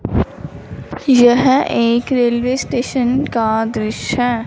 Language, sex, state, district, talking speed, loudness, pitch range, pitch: Hindi, female, Punjab, Fazilka, 95 wpm, -15 LUFS, 230-255 Hz, 245 Hz